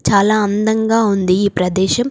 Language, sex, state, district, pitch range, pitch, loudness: Telugu, female, Telangana, Komaram Bheem, 190-220 Hz, 205 Hz, -15 LUFS